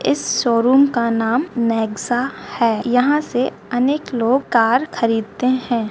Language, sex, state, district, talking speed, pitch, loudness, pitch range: Hindi, female, Bihar, Bhagalpur, 130 wpm, 240 Hz, -18 LUFS, 230-255 Hz